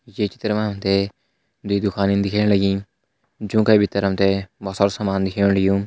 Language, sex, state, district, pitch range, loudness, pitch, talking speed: Hindi, male, Uttarakhand, Tehri Garhwal, 100-105 Hz, -20 LUFS, 100 Hz, 195 wpm